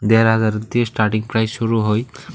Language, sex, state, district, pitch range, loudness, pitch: Bengali, male, Tripura, West Tripura, 110-115 Hz, -18 LUFS, 110 Hz